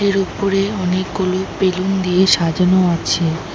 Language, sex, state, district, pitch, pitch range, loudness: Bengali, female, West Bengal, Alipurduar, 185 Hz, 180-195 Hz, -16 LUFS